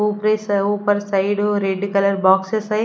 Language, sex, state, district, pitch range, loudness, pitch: Hindi, female, Chandigarh, Chandigarh, 195-210 Hz, -18 LUFS, 205 Hz